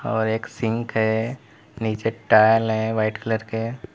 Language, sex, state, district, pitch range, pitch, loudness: Hindi, male, Uttar Pradesh, Lalitpur, 110-115 Hz, 110 Hz, -22 LUFS